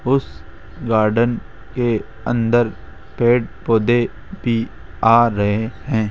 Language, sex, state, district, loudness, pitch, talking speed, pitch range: Hindi, male, Rajasthan, Jaipur, -18 LUFS, 115 Hz, 100 wpm, 105-120 Hz